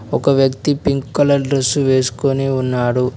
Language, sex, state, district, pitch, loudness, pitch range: Telugu, male, Telangana, Mahabubabad, 135 Hz, -16 LUFS, 125-140 Hz